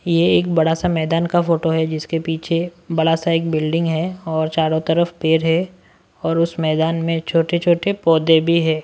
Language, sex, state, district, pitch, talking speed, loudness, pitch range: Hindi, male, Maharashtra, Washim, 165 Hz, 190 wpm, -18 LUFS, 160-170 Hz